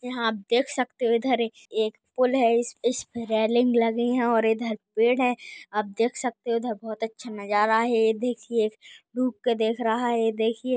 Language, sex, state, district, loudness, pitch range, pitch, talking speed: Hindi, female, Maharashtra, Pune, -25 LUFS, 225-245 Hz, 230 Hz, 190 wpm